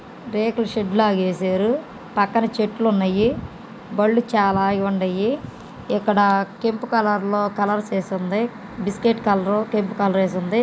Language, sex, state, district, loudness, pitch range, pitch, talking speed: Telugu, female, Andhra Pradesh, Guntur, -21 LUFS, 195-225 Hz, 210 Hz, 130 wpm